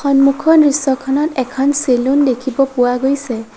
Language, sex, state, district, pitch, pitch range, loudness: Assamese, female, Assam, Sonitpur, 270 Hz, 260-280 Hz, -14 LUFS